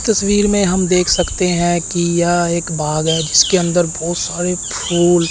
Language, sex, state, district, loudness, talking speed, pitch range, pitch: Hindi, male, Chandigarh, Chandigarh, -15 LUFS, 190 wpm, 170-180 Hz, 175 Hz